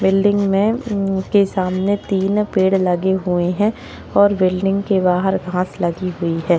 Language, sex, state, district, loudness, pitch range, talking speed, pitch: Hindi, female, Maharashtra, Chandrapur, -18 LUFS, 180-200 Hz, 155 wpm, 190 Hz